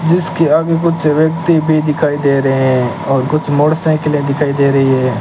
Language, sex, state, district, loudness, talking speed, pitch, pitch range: Hindi, male, Rajasthan, Bikaner, -13 LUFS, 185 wpm, 150 Hz, 135-160 Hz